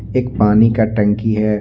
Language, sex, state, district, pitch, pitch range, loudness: Hindi, male, Jharkhand, Deoghar, 105 Hz, 105-115 Hz, -15 LUFS